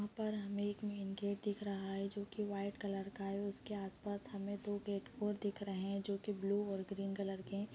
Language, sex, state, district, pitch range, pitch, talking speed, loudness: Hindi, female, Chhattisgarh, Bastar, 195-205 Hz, 200 Hz, 250 wpm, -42 LUFS